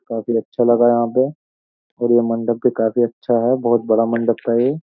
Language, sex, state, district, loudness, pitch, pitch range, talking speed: Hindi, male, Uttar Pradesh, Jyotiba Phule Nagar, -17 LUFS, 120 Hz, 115-120 Hz, 210 wpm